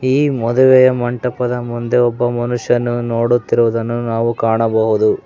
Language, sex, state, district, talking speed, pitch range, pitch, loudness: Kannada, male, Karnataka, Bangalore, 100 wpm, 115-125 Hz, 120 Hz, -15 LUFS